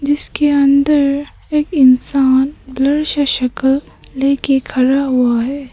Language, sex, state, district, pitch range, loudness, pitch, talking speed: Hindi, female, Arunachal Pradesh, Papum Pare, 265-290 Hz, -14 LUFS, 275 Hz, 115 wpm